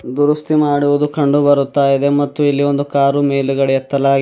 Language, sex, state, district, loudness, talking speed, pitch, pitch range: Kannada, male, Karnataka, Bidar, -14 LUFS, 155 wpm, 140 Hz, 140-145 Hz